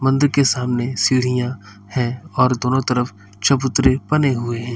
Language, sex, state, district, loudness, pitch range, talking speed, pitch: Hindi, male, Uttar Pradesh, Lalitpur, -18 LUFS, 120-135 Hz, 150 wpm, 125 Hz